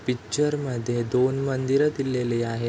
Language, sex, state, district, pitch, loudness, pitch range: Marathi, male, Maharashtra, Chandrapur, 130 Hz, -25 LUFS, 120-135 Hz